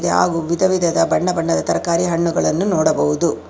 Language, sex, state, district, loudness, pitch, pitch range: Kannada, female, Karnataka, Bangalore, -17 LUFS, 170 Hz, 165-175 Hz